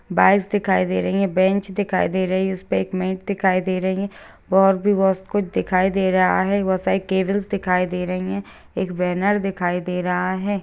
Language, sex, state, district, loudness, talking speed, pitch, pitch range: Hindi, female, Bihar, Jahanabad, -20 LUFS, 170 wpm, 190 Hz, 185-195 Hz